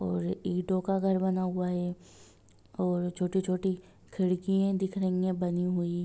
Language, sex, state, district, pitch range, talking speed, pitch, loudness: Hindi, female, Bihar, Sitamarhi, 175-190 Hz, 160 wpm, 180 Hz, -30 LUFS